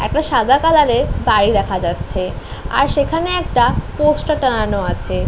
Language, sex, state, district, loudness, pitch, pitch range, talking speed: Bengali, female, West Bengal, North 24 Parganas, -16 LUFS, 300 Hz, 215-325 Hz, 145 wpm